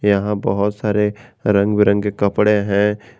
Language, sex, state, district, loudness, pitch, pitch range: Hindi, male, Jharkhand, Garhwa, -17 LUFS, 105 Hz, 100-105 Hz